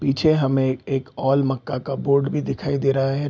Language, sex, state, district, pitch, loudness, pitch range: Hindi, male, Bihar, Gopalganj, 135 Hz, -21 LUFS, 135-140 Hz